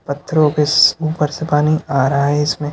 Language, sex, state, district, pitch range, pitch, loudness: Hindi, male, Haryana, Charkhi Dadri, 145-155 Hz, 150 Hz, -15 LUFS